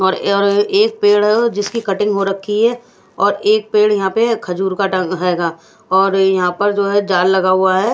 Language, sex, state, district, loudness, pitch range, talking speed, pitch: Hindi, female, Odisha, Nuapada, -15 LUFS, 190-215 Hz, 220 wpm, 200 Hz